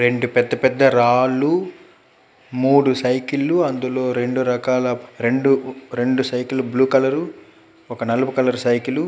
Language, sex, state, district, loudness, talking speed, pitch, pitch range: Telugu, male, Andhra Pradesh, Chittoor, -19 LUFS, 110 wpm, 130 Hz, 125-135 Hz